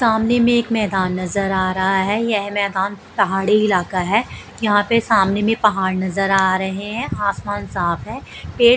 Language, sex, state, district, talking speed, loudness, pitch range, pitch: Hindi, female, Punjab, Pathankot, 170 wpm, -18 LUFS, 190-220 Hz, 200 Hz